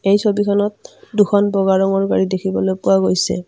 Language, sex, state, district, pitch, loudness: Assamese, female, Assam, Kamrup Metropolitan, 195 Hz, -17 LUFS